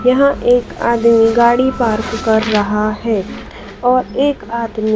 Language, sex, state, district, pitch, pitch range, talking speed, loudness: Hindi, female, Madhya Pradesh, Dhar, 230 Hz, 220-245 Hz, 135 wpm, -14 LUFS